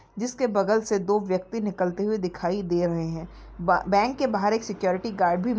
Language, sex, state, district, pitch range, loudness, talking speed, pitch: Hindi, female, West Bengal, Kolkata, 180-220 Hz, -25 LUFS, 205 wpm, 200 Hz